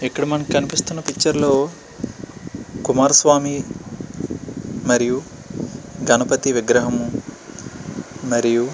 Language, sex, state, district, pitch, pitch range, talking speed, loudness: Telugu, male, Andhra Pradesh, Srikakulam, 140 Hz, 125-145 Hz, 80 wpm, -19 LUFS